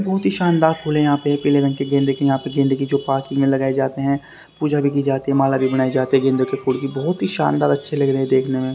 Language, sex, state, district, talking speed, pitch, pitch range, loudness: Hindi, male, Haryana, Rohtak, 310 wpm, 135 Hz, 135-145 Hz, -19 LUFS